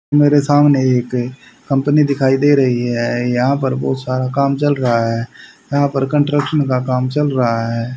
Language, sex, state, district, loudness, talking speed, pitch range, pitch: Hindi, male, Haryana, Charkhi Dadri, -15 LUFS, 180 wpm, 125-145 Hz, 130 Hz